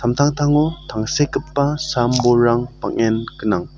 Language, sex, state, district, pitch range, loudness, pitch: Garo, male, Meghalaya, South Garo Hills, 120-145 Hz, -18 LUFS, 125 Hz